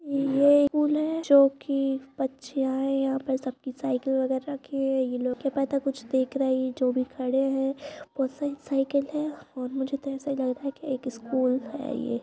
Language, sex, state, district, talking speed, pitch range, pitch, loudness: Hindi, female, Uttar Pradesh, Jalaun, 205 wpm, 260-280 Hz, 270 Hz, -27 LUFS